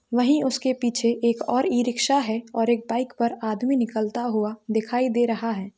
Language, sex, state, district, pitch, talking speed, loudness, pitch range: Hindi, female, Chhattisgarh, Bilaspur, 235 Hz, 185 wpm, -24 LUFS, 225-245 Hz